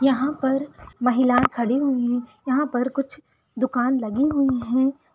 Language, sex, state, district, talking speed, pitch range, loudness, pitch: Hindi, female, Bihar, Jamui, 165 wpm, 245-275 Hz, -22 LUFS, 260 Hz